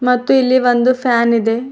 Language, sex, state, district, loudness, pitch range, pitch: Kannada, female, Karnataka, Bidar, -13 LUFS, 235-255 Hz, 250 Hz